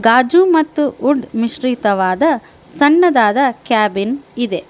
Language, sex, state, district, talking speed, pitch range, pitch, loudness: Kannada, female, Karnataka, Bangalore, 90 wpm, 225-290 Hz, 250 Hz, -14 LUFS